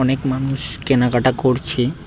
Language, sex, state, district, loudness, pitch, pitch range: Bengali, male, West Bengal, Cooch Behar, -19 LUFS, 130 Hz, 125-135 Hz